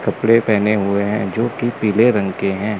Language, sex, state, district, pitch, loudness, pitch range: Hindi, male, Chandigarh, Chandigarh, 105 Hz, -17 LUFS, 100-115 Hz